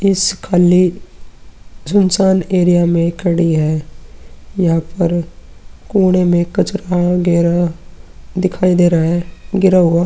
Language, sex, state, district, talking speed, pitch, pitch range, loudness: Hindi, male, Uttar Pradesh, Muzaffarnagar, 115 wpm, 175 Hz, 165-185 Hz, -14 LUFS